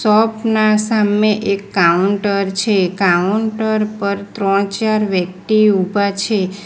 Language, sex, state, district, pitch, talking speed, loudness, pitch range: Gujarati, female, Gujarat, Valsad, 200 Hz, 115 wpm, -16 LUFS, 195-215 Hz